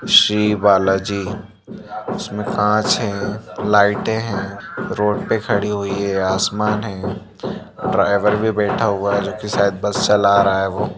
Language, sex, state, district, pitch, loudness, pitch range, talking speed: Hindi, female, Chhattisgarh, Raigarh, 105 Hz, -18 LUFS, 100-105 Hz, 140 wpm